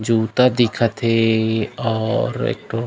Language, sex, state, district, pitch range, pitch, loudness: Chhattisgarhi, male, Chhattisgarh, Raigarh, 110-115 Hz, 115 Hz, -19 LUFS